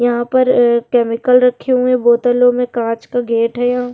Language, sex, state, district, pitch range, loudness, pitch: Hindi, female, Uttarakhand, Tehri Garhwal, 235-250 Hz, -14 LUFS, 245 Hz